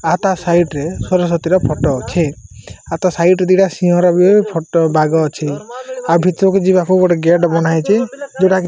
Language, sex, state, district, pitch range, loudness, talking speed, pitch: Odia, male, Odisha, Malkangiri, 160-185 Hz, -14 LUFS, 195 wpm, 175 Hz